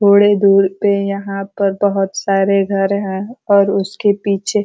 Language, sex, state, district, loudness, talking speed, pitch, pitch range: Hindi, female, Uttar Pradesh, Ghazipur, -15 LUFS, 165 wpm, 200 Hz, 195-200 Hz